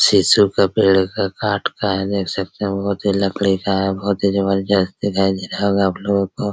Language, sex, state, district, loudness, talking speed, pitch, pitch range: Hindi, male, Bihar, Araria, -18 LUFS, 230 wpm, 100 Hz, 95-100 Hz